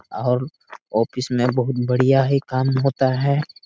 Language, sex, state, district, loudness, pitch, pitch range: Hindi, male, Jharkhand, Sahebganj, -20 LUFS, 130 Hz, 125-135 Hz